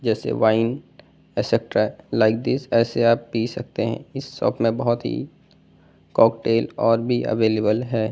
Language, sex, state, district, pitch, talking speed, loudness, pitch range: Hindi, male, Delhi, New Delhi, 115 Hz, 150 wpm, -21 LUFS, 110-120 Hz